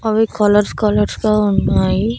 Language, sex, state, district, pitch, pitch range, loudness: Telugu, female, Andhra Pradesh, Annamaya, 210 Hz, 205-220 Hz, -15 LUFS